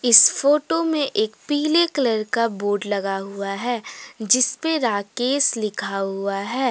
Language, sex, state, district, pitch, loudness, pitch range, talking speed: Hindi, female, Jharkhand, Deoghar, 230 Hz, -20 LUFS, 205-280 Hz, 135 wpm